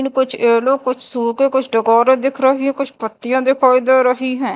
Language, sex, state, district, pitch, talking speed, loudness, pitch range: Hindi, female, Madhya Pradesh, Dhar, 260 Hz, 210 wpm, -15 LUFS, 245-265 Hz